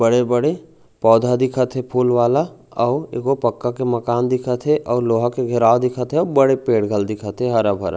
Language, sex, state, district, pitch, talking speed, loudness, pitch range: Chhattisgarhi, male, Chhattisgarh, Raigarh, 120 Hz, 195 wpm, -18 LUFS, 115-130 Hz